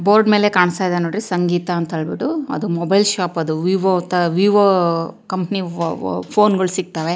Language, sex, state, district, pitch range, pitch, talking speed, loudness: Kannada, female, Karnataka, Chamarajanagar, 170-200 Hz, 180 Hz, 185 wpm, -17 LUFS